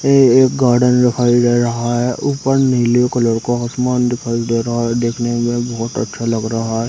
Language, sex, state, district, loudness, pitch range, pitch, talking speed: Hindi, male, Chhattisgarh, Raigarh, -15 LUFS, 115-125 Hz, 120 Hz, 210 wpm